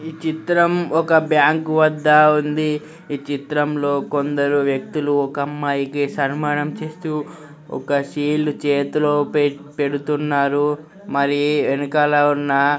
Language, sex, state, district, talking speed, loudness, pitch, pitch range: Telugu, male, Telangana, Karimnagar, 105 wpm, -19 LUFS, 145 Hz, 145-155 Hz